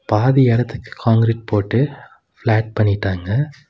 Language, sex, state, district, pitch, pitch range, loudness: Tamil, male, Tamil Nadu, Nilgiris, 115 Hz, 105-130 Hz, -18 LUFS